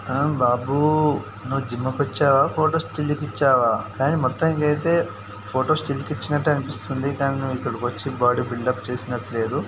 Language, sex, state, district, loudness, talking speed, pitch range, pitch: Telugu, male, Telangana, Nalgonda, -22 LUFS, 165 wpm, 125-150 Hz, 135 Hz